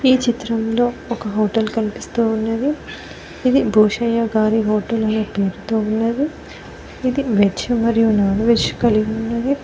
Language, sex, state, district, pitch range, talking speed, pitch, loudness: Telugu, female, Telangana, Mahabubabad, 215-240 Hz, 120 wpm, 225 Hz, -18 LUFS